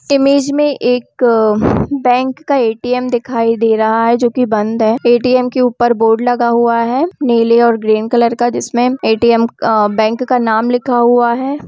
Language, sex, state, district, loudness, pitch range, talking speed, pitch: Hindi, female, Bihar, Gopalganj, -13 LUFS, 230-250 Hz, 185 wpm, 240 Hz